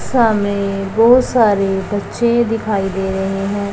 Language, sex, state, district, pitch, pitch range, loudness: Hindi, male, Punjab, Pathankot, 205 Hz, 195-230 Hz, -15 LUFS